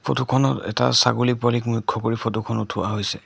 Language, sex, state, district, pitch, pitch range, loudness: Assamese, male, Assam, Sonitpur, 115 Hz, 105-120 Hz, -21 LUFS